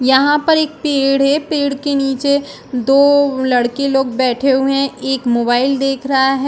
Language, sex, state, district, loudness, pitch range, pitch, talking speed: Hindi, female, Bihar, Sitamarhi, -15 LUFS, 265-280 Hz, 275 Hz, 175 wpm